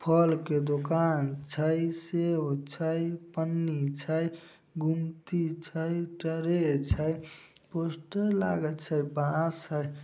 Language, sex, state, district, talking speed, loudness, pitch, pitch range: Maithili, male, Bihar, Samastipur, 100 wpm, -30 LUFS, 160 Hz, 150-165 Hz